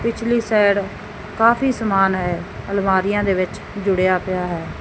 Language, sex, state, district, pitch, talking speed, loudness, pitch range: Punjabi, male, Punjab, Fazilka, 200 Hz, 135 wpm, -19 LUFS, 185-220 Hz